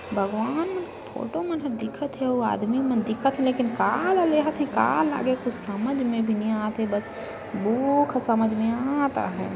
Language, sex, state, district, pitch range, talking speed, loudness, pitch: Chhattisgarhi, female, Chhattisgarh, Sarguja, 225-285 Hz, 175 wpm, -25 LUFS, 250 Hz